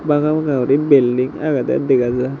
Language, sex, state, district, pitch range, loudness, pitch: Chakma, male, Tripura, Dhalai, 125-150 Hz, -16 LUFS, 140 Hz